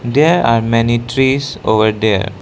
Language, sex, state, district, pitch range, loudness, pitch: English, male, Arunachal Pradesh, Lower Dibang Valley, 110-130 Hz, -14 LUFS, 115 Hz